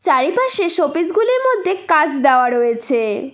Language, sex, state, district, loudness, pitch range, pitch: Bengali, female, West Bengal, Cooch Behar, -16 LUFS, 250-415 Hz, 320 Hz